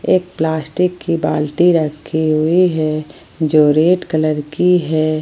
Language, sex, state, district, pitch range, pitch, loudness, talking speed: Hindi, female, Jharkhand, Ranchi, 155-175 Hz, 160 Hz, -15 LUFS, 150 wpm